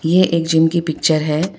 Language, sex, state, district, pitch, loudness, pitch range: Hindi, female, Arunachal Pradesh, Papum Pare, 165 Hz, -16 LUFS, 160-170 Hz